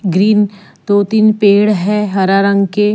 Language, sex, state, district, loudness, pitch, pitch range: Hindi, female, Jharkhand, Deoghar, -12 LUFS, 205 Hz, 200-210 Hz